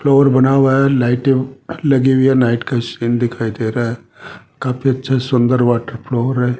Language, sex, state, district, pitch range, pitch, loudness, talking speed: Hindi, male, Rajasthan, Jaipur, 120-135 Hz, 125 Hz, -15 LUFS, 190 wpm